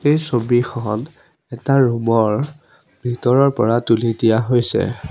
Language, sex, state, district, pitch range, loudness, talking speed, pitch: Assamese, male, Assam, Sonitpur, 115-135 Hz, -17 LUFS, 105 wpm, 120 Hz